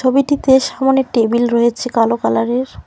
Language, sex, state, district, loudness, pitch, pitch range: Bengali, female, West Bengal, Cooch Behar, -15 LUFS, 250 Hz, 235-265 Hz